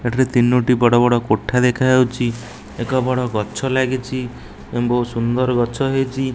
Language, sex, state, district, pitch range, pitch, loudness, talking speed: Odia, male, Odisha, Nuapada, 120-130 Hz, 125 Hz, -18 LUFS, 130 wpm